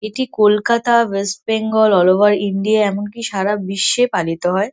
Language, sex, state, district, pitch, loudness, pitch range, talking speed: Bengali, female, West Bengal, North 24 Parganas, 205 Hz, -16 LUFS, 195-220 Hz, 150 wpm